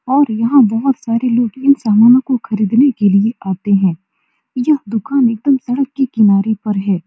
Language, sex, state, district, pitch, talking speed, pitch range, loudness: Hindi, female, Bihar, Supaul, 230 Hz, 180 wpm, 210-265 Hz, -14 LUFS